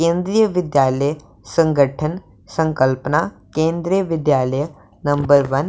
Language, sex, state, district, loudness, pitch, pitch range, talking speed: Hindi, male, Punjab, Pathankot, -18 LUFS, 150 Hz, 140-165 Hz, 95 wpm